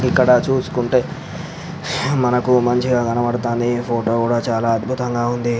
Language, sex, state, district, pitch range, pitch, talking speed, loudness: Telugu, male, Andhra Pradesh, Anantapur, 120-130 Hz, 125 Hz, 95 wpm, -18 LUFS